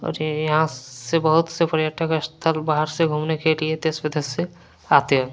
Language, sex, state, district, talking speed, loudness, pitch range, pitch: Hindi, male, Jharkhand, Deoghar, 180 wpm, -21 LUFS, 150-160 Hz, 155 Hz